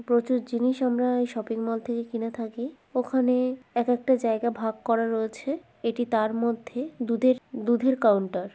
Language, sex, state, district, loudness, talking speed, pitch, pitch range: Bengali, female, West Bengal, Kolkata, -26 LUFS, 160 wpm, 240 Hz, 230-250 Hz